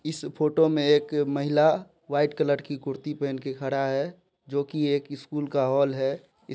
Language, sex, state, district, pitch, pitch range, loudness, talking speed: Hindi, male, Bihar, Supaul, 145 Hz, 140-150 Hz, -26 LUFS, 185 wpm